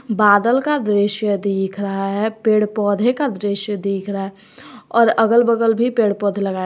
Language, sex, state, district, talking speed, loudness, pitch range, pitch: Hindi, female, Jharkhand, Garhwa, 180 wpm, -18 LUFS, 200-230 Hz, 210 Hz